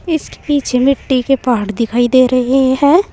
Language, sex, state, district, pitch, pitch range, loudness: Hindi, female, Uttar Pradesh, Saharanpur, 260 Hz, 250-285 Hz, -13 LUFS